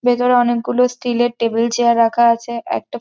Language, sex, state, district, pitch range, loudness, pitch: Bengali, female, West Bengal, Jhargram, 235-245 Hz, -16 LUFS, 240 Hz